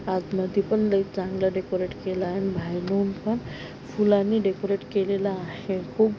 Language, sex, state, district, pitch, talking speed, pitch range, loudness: Marathi, female, Maharashtra, Aurangabad, 195 Hz, 155 wpm, 185-200 Hz, -26 LUFS